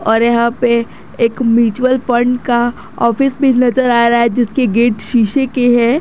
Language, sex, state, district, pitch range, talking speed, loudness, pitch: Hindi, female, Jharkhand, Garhwa, 235-250 Hz, 180 wpm, -13 LUFS, 240 Hz